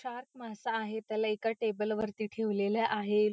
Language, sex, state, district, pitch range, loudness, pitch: Marathi, female, Maharashtra, Pune, 215-225 Hz, -33 LUFS, 220 Hz